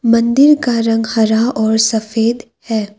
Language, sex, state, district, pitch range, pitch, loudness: Hindi, female, Assam, Kamrup Metropolitan, 220-235 Hz, 225 Hz, -13 LUFS